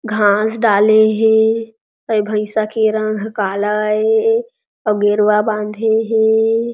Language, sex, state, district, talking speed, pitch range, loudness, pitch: Chhattisgarhi, female, Chhattisgarh, Jashpur, 125 wpm, 210-225 Hz, -15 LUFS, 215 Hz